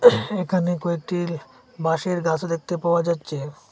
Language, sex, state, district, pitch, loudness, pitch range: Bengali, male, Assam, Hailakandi, 170 Hz, -24 LUFS, 165-180 Hz